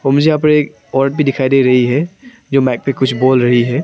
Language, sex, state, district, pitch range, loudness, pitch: Hindi, male, Arunachal Pradesh, Papum Pare, 130-150 Hz, -13 LUFS, 135 Hz